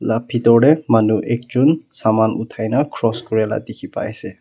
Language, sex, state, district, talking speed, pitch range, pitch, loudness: Nagamese, male, Nagaland, Kohima, 175 wpm, 110-120 Hz, 115 Hz, -17 LUFS